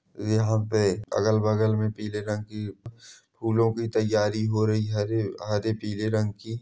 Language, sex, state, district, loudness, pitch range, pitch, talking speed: Hindi, male, Chhattisgarh, Balrampur, -26 LUFS, 105-110 Hz, 110 Hz, 170 wpm